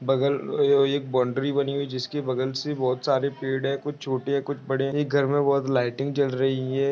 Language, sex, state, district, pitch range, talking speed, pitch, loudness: Hindi, male, Maharashtra, Pune, 130-140 Hz, 235 wpm, 140 Hz, -25 LUFS